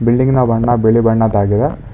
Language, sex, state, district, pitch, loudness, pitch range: Kannada, male, Karnataka, Bangalore, 115 Hz, -13 LUFS, 110-120 Hz